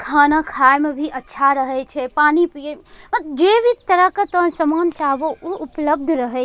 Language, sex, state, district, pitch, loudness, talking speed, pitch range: Angika, female, Bihar, Bhagalpur, 305 Hz, -17 LUFS, 195 wpm, 275-350 Hz